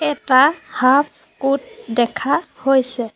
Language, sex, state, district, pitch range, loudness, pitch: Assamese, female, Assam, Sonitpur, 250-280 Hz, -17 LUFS, 260 Hz